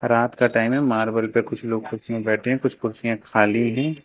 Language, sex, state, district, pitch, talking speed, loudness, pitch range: Hindi, male, Uttar Pradesh, Lucknow, 115 Hz, 220 wpm, -22 LUFS, 110-125 Hz